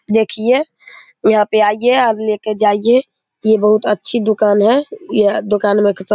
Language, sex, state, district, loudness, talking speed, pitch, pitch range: Hindi, male, Bihar, Begusarai, -14 LUFS, 155 wpm, 215 Hz, 210-235 Hz